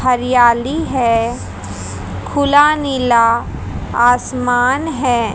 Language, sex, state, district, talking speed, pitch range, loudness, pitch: Hindi, female, Haryana, Jhajjar, 65 wpm, 230-260 Hz, -14 LUFS, 245 Hz